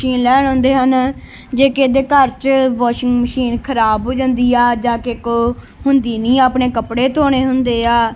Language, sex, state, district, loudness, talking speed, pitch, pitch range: Punjabi, female, Punjab, Kapurthala, -14 LUFS, 175 wpm, 255 Hz, 240-265 Hz